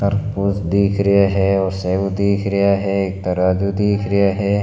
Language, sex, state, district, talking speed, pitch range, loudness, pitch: Marwari, male, Rajasthan, Nagaur, 180 wpm, 95-100 Hz, -17 LUFS, 100 Hz